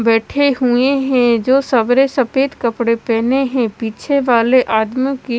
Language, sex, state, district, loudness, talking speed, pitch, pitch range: Hindi, female, Chandigarh, Chandigarh, -15 LUFS, 145 wpm, 250 Hz, 230-270 Hz